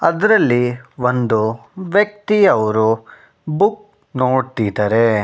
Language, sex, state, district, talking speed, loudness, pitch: Kannada, male, Karnataka, Bangalore, 55 wpm, -16 LUFS, 130 Hz